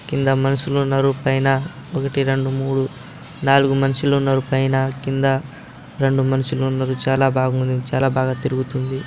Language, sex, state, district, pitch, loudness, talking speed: Telugu, male, Telangana, Nalgonda, 135 Hz, -19 LUFS, 130 wpm